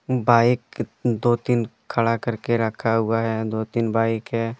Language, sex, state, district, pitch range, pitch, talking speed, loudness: Hindi, male, Jharkhand, Deoghar, 115-120 Hz, 115 Hz, 155 wpm, -22 LUFS